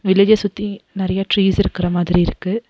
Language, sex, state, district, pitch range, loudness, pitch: Tamil, female, Tamil Nadu, Nilgiris, 185-205 Hz, -17 LUFS, 195 Hz